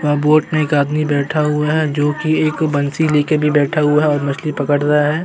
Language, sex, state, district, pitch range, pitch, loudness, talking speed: Hindi, male, Chhattisgarh, Sukma, 145-155 Hz, 150 Hz, -16 LUFS, 240 wpm